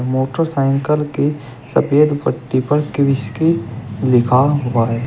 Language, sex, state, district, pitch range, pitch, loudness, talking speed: Hindi, male, Uttar Pradesh, Shamli, 125-145 Hz, 135 Hz, -16 LUFS, 105 wpm